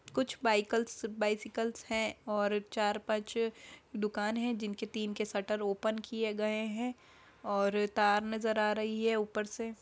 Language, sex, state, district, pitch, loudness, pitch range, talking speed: Hindi, female, Bihar, Darbhanga, 215 Hz, -34 LUFS, 210-225 Hz, 160 wpm